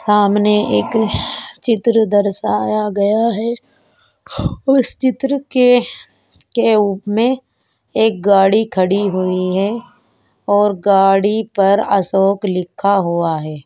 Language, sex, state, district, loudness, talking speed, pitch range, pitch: Hindi, female, Uttar Pradesh, Ghazipur, -15 LUFS, 105 wpm, 195-230 Hz, 205 Hz